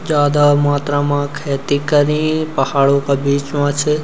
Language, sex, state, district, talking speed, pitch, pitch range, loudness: Garhwali, male, Uttarakhand, Uttarkashi, 150 wpm, 145 Hz, 140-150 Hz, -16 LUFS